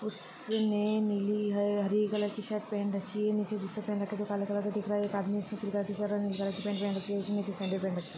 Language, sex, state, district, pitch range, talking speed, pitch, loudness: Hindi, female, Chhattisgarh, Balrampur, 200-210 Hz, 185 wpm, 205 Hz, -33 LUFS